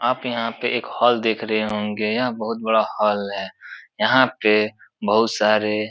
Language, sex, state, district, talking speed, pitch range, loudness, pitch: Hindi, male, Uttar Pradesh, Etah, 180 wpm, 105-115 Hz, -21 LUFS, 110 Hz